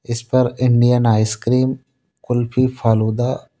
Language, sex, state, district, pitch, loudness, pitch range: Hindi, male, Rajasthan, Jaipur, 120 Hz, -17 LUFS, 115-130 Hz